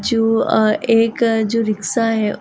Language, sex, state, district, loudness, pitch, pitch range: Hindi, female, Bihar, Saran, -16 LUFS, 225 Hz, 215-230 Hz